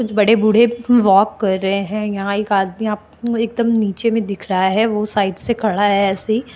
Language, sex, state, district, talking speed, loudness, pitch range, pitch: Hindi, female, Maharashtra, Chandrapur, 210 wpm, -17 LUFS, 200-225 Hz, 210 Hz